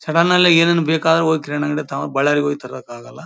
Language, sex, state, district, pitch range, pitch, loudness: Kannada, male, Karnataka, Bellary, 145-165 Hz, 150 Hz, -16 LUFS